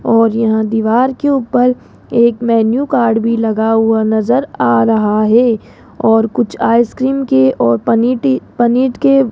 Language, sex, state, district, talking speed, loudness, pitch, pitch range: Hindi, female, Rajasthan, Jaipur, 155 wpm, -13 LUFS, 230 Hz, 220-250 Hz